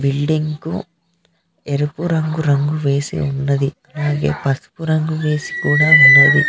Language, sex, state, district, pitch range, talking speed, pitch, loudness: Telugu, male, Telangana, Mahabubabad, 140-155 Hz, 130 wpm, 150 Hz, -16 LUFS